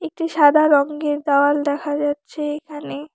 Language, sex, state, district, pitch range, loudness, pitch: Bengali, female, West Bengal, Alipurduar, 290-300 Hz, -18 LUFS, 295 Hz